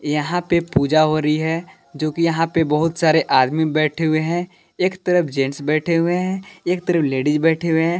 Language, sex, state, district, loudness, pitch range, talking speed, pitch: Hindi, male, Jharkhand, Palamu, -19 LUFS, 155-175 Hz, 210 wpm, 165 Hz